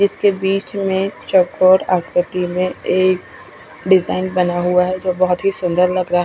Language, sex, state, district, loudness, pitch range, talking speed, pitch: Hindi, female, Odisha, Khordha, -16 LUFS, 180-190 Hz, 180 wpm, 185 Hz